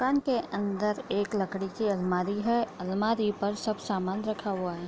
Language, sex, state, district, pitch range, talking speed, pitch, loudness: Hindi, female, Bihar, Bhagalpur, 195-215 Hz, 185 wpm, 205 Hz, -30 LUFS